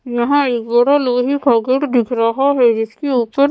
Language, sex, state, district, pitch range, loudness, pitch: Hindi, female, Maharashtra, Mumbai Suburban, 235-280 Hz, -15 LUFS, 250 Hz